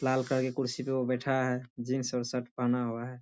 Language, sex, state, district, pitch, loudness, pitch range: Hindi, male, Bihar, Bhagalpur, 125 Hz, -32 LUFS, 125-130 Hz